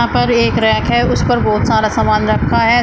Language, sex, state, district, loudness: Hindi, female, Uttar Pradesh, Shamli, -13 LUFS